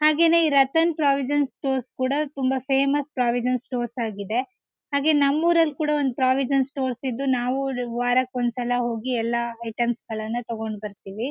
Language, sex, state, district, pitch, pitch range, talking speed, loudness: Kannada, female, Karnataka, Shimoga, 255 Hz, 240-280 Hz, 155 wpm, -24 LUFS